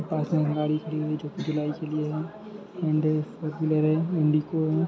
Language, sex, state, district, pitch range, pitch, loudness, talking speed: Hindi, male, Jharkhand, Sahebganj, 155-160 Hz, 155 Hz, -27 LUFS, 125 wpm